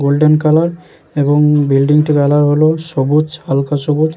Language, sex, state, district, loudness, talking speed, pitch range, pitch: Bengali, male, West Bengal, Jalpaiguri, -13 LUFS, 145 wpm, 145-155 Hz, 150 Hz